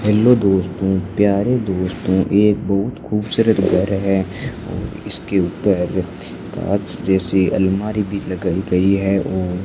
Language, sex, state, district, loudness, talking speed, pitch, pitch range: Hindi, male, Rajasthan, Bikaner, -18 LUFS, 130 wpm, 95 Hz, 95-105 Hz